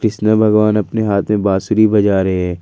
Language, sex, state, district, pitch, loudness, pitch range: Hindi, male, Jharkhand, Ranchi, 105 Hz, -14 LUFS, 95-110 Hz